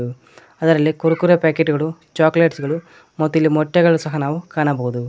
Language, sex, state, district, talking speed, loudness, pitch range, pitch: Kannada, male, Karnataka, Koppal, 140 wpm, -17 LUFS, 150-165 Hz, 155 Hz